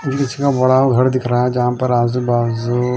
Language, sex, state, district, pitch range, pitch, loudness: Hindi, male, Himachal Pradesh, Shimla, 120-130 Hz, 125 Hz, -16 LUFS